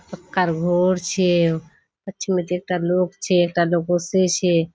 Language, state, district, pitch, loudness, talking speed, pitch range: Surjapuri, Bihar, Kishanganj, 180 Hz, -20 LUFS, 125 wpm, 170-185 Hz